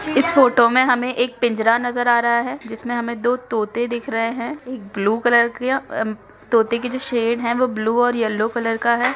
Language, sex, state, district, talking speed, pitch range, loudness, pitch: Hindi, female, Bihar, Araria, 230 wpm, 230-250 Hz, -19 LUFS, 235 Hz